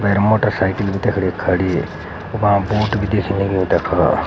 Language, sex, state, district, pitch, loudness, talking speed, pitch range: Garhwali, male, Uttarakhand, Uttarkashi, 100 Hz, -18 LUFS, 170 wpm, 95-105 Hz